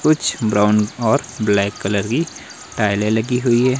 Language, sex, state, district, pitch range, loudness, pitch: Hindi, male, Himachal Pradesh, Shimla, 105-125 Hz, -18 LUFS, 110 Hz